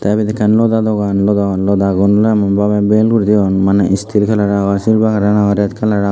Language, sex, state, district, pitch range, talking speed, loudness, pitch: Chakma, male, Tripura, Dhalai, 100-105 Hz, 225 wpm, -13 LUFS, 105 Hz